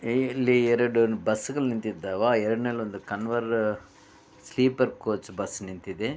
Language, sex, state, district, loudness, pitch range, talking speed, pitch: Kannada, male, Karnataka, Bellary, -26 LUFS, 110-125 Hz, 115 wpm, 115 Hz